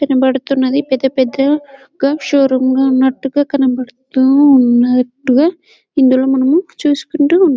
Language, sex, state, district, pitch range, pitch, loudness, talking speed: Telugu, female, Telangana, Karimnagar, 260-285 Hz, 270 Hz, -13 LUFS, 95 wpm